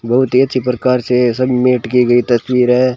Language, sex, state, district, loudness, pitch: Hindi, male, Rajasthan, Bikaner, -13 LUFS, 125 Hz